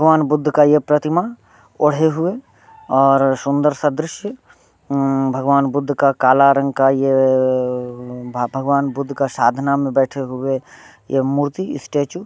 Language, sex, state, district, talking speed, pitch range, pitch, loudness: Hindi, male, Bihar, Muzaffarpur, 145 wpm, 135-150 Hz, 140 Hz, -17 LUFS